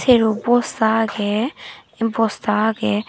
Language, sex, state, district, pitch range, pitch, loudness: Chakma, female, Tripura, Dhalai, 215-225 Hz, 220 Hz, -19 LUFS